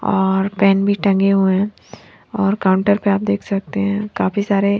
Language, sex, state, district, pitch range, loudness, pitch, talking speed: Hindi, female, Bihar, Patna, 195-205 Hz, -17 LUFS, 200 Hz, 200 wpm